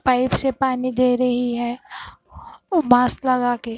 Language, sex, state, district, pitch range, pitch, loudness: Hindi, female, Punjab, Fazilka, 245-255 Hz, 250 Hz, -20 LUFS